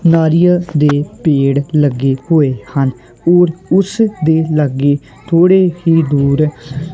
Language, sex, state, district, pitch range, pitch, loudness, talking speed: Punjabi, male, Punjab, Kapurthala, 140-170 Hz, 155 Hz, -13 LUFS, 115 wpm